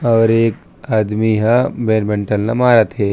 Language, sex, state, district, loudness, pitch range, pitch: Chhattisgarhi, male, Chhattisgarh, Raigarh, -15 LUFS, 105-115 Hz, 110 Hz